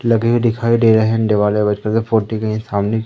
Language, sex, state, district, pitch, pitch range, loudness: Hindi, male, Madhya Pradesh, Umaria, 110 Hz, 105-115 Hz, -16 LUFS